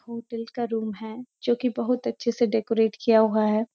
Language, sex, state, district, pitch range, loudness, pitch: Hindi, female, Uttarakhand, Uttarkashi, 220-235 Hz, -25 LUFS, 230 Hz